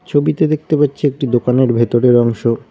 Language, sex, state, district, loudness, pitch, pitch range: Bengali, male, West Bengal, Cooch Behar, -14 LUFS, 130 Hz, 120-145 Hz